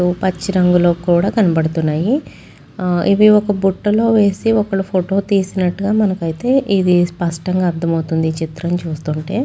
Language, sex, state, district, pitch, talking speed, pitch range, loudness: Telugu, female, Andhra Pradesh, Chittoor, 185 Hz, 125 wpm, 170-205 Hz, -16 LUFS